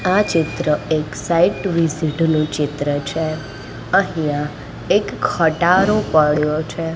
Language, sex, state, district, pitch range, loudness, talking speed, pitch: Gujarati, female, Gujarat, Gandhinagar, 150-170 Hz, -18 LUFS, 110 wpm, 155 Hz